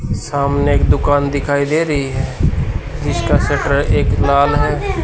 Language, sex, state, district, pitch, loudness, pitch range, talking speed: Hindi, male, Haryana, Charkhi Dadri, 140 Hz, -16 LUFS, 130-145 Hz, 145 wpm